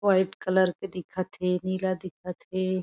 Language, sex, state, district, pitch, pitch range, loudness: Chhattisgarhi, female, Chhattisgarh, Korba, 185 Hz, 180-185 Hz, -28 LUFS